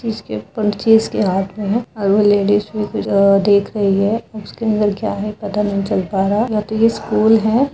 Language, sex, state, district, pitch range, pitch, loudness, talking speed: Hindi, female, Uttar Pradesh, Budaun, 200-220 Hz, 210 Hz, -16 LUFS, 200 wpm